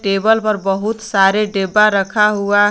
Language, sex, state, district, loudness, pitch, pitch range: Hindi, female, Jharkhand, Garhwa, -15 LUFS, 205 Hz, 195-215 Hz